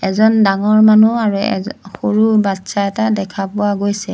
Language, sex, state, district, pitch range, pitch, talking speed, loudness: Assamese, female, Assam, Sonitpur, 200-215 Hz, 205 Hz, 160 wpm, -14 LUFS